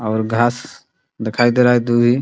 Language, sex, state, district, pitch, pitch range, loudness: Hindi, male, Bihar, Muzaffarpur, 120 Hz, 110-120 Hz, -16 LUFS